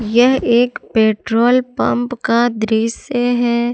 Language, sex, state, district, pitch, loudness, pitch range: Hindi, female, Jharkhand, Ranchi, 240 Hz, -15 LUFS, 225-245 Hz